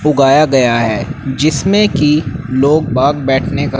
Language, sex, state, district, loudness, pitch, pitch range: Hindi, male, Haryana, Rohtak, -12 LUFS, 140 Hz, 135-150 Hz